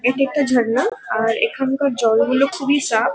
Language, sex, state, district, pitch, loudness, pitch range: Bengali, female, West Bengal, Kolkata, 265 Hz, -18 LUFS, 230-280 Hz